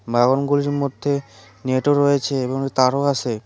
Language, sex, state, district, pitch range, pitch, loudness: Bengali, male, West Bengal, Cooch Behar, 125-140 Hz, 135 Hz, -20 LUFS